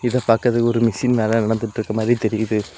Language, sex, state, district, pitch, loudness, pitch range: Tamil, male, Tamil Nadu, Kanyakumari, 115 Hz, -19 LUFS, 110-120 Hz